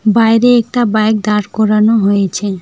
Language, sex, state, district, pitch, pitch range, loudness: Bengali, female, West Bengal, Alipurduar, 215 Hz, 210-225 Hz, -12 LUFS